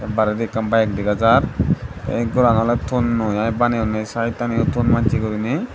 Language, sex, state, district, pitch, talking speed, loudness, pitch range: Chakma, male, Tripura, Dhalai, 115 Hz, 165 wpm, -19 LUFS, 110-120 Hz